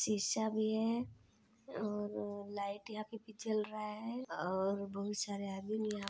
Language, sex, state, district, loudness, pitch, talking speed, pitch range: Hindi, female, Chhattisgarh, Sarguja, -39 LUFS, 210 Hz, 175 wpm, 200-220 Hz